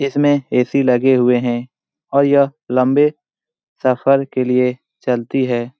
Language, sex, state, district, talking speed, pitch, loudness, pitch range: Hindi, male, Bihar, Jamui, 135 wpm, 130 Hz, -16 LUFS, 125-140 Hz